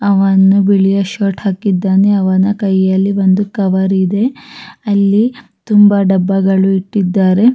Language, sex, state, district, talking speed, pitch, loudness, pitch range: Kannada, female, Karnataka, Raichur, 105 wpm, 195 Hz, -12 LUFS, 190-205 Hz